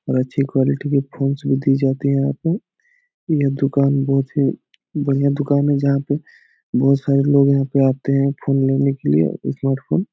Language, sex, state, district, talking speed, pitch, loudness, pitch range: Hindi, male, Bihar, Jahanabad, 200 wpm, 140 Hz, -18 LUFS, 135-140 Hz